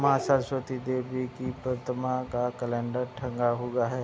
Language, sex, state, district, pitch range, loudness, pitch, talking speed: Hindi, male, Bihar, Saharsa, 125-130 Hz, -30 LUFS, 125 Hz, 150 wpm